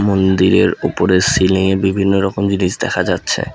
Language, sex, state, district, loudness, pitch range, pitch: Bengali, male, West Bengal, Alipurduar, -14 LUFS, 95-100 Hz, 95 Hz